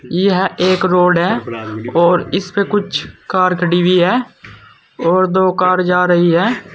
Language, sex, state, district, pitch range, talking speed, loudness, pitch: Hindi, male, Uttar Pradesh, Saharanpur, 175-190 Hz, 150 wpm, -14 LUFS, 180 Hz